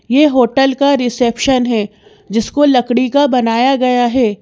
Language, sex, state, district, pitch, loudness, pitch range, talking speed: Hindi, female, Madhya Pradesh, Bhopal, 250 Hz, -13 LUFS, 235-270 Hz, 150 wpm